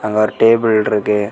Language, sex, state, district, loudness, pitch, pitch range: Tamil, male, Tamil Nadu, Kanyakumari, -14 LUFS, 110 Hz, 105-110 Hz